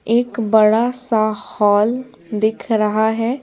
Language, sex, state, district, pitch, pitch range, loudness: Hindi, female, Bihar, Patna, 220 Hz, 215-240 Hz, -17 LUFS